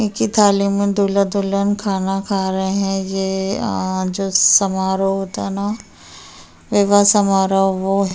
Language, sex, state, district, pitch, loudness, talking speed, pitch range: Hindi, female, Uttar Pradesh, Hamirpur, 195 Hz, -17 LUFS, 145 wpm, 195-200 Hz